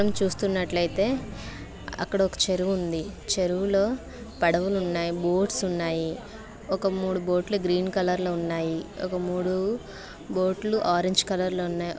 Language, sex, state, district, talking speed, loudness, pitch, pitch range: Telugu, female, Andhra Pradesh, Visakhapatnam, 125 wpm, -26 LUFS, 185 Hz, 175-195 Hz